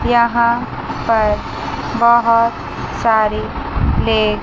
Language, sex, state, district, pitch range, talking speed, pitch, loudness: Hindi, female, Chandigarh, Chandigarh, 220-235 Hz, 80 wpm, 230 Hz, -16 LUFS